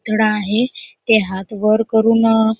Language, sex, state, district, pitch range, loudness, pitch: Marathi, female, Maharashtra, Chandrapur, 215-225 Hz, -16 LUFS, 220 Hz